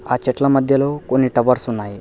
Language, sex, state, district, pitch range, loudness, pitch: Telugu, male, Telangana, Hyderabad, 120-135 Hz, -17 LUFS, 130 Hz